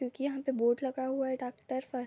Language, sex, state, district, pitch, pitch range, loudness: Hindi, female, Jharkhand, Sahebganj, 260 Hz, 250-270 Hz, -33 LUFS